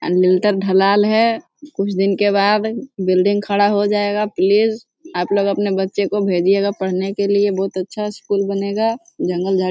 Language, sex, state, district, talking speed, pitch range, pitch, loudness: Hindi, female, Bihar, Jamui, 160 wpm, 190-210 Hz, 200 Hz, -17 LUFS